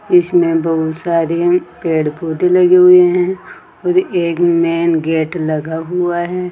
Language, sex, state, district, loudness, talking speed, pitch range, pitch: Hindi, female, Rajasthan, Jaipur, -14 LUFS, 140 wpm, 165-180 Hz, 175 Hz